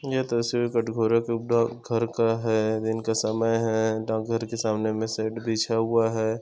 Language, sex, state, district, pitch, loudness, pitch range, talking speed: Hindi, male, Chhattisgarh, Korba, 115 Hz, -25 LUFS, 110-115 Hz, 175 wpm